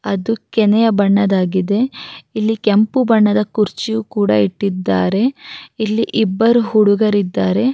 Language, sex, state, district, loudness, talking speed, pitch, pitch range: Kannada, female, Karnataka, Raichur, -15 LUFS, 95 wpm, 210 Hz, 195-225 Hz